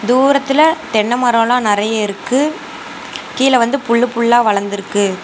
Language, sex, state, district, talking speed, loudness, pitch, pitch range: Tamil, female, Tamil Nadu, Namakkal, 115 wpm, -14 LUFS, 245 Hz, 215-280 Hz